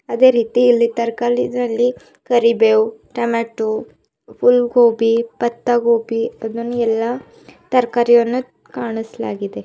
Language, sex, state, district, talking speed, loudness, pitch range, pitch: Kannada, female, Karnataka, Bidar, 85 wpm, -17 LUFS, 225-240 Hz, 235 Hz